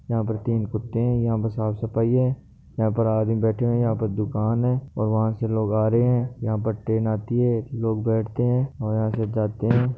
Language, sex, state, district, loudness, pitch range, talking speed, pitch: Hindi, male, Rajasthan, Nagaur, -23 LUFS, 110-120 Hz, 240 wpm, 110 Hz